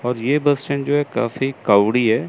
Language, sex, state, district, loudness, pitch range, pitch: Hindi, male, Chandigarh, Chandigarh, -18 LUFS, 120-140 Hz, 130 Hz